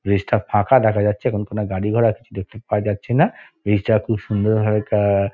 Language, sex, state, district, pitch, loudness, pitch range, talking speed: Bengali, male, West Bengal, Dakshin Dinajpur, 105 Hz, -19 LUFS, 105-110 Hz, 245 wpm